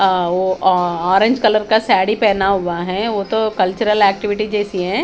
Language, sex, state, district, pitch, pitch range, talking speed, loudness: Hindi, female, Haryana, Charkhi Dadri, 200 Hz, 185-215 Hz, 200 wpm, -16 LUFS